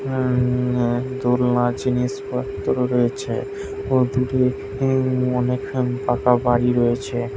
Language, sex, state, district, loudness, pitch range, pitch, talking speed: Bengali, male, West Bengal, Jhargram, -21 LUFS, 125-130 Hz, 125 Hz, 90 wpm